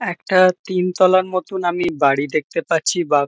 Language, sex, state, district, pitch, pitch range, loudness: Bengali, male, West Bengal, Kolkata, 180 Hz, 160-185 Hz, -18 LUFS